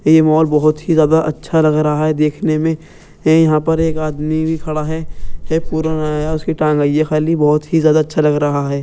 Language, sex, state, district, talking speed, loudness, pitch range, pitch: Hindi, male, Uttar Pradesh, Jyotiba Phule Nagar, 215 wpm, -15 LUFS, 150-160 Hz, 155 Hz